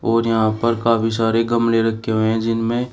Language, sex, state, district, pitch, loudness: Hindi, male, Uttar Pradesh, Shamli, 115 Hz, -18 LUFS